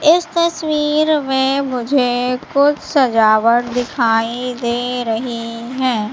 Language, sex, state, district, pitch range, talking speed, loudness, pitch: Hindi, female, Madhya Pradesh, Katni, 235-285 Hz, 100 wpm, -16 LUFS, 250 Hz